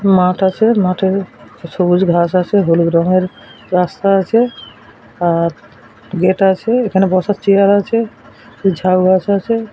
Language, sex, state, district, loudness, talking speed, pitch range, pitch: Bengali, female, West Bengal, Jalpaiguri, -14 LUFS, 125 wpm, 180-200 Hz, 190 Hz